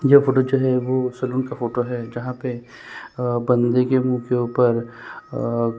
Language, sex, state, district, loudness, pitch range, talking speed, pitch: Hindi, male, Chhattisgarh, Kabirdham, -21 LUFS, 120-130 Hz, 165 wpm, 125 Hz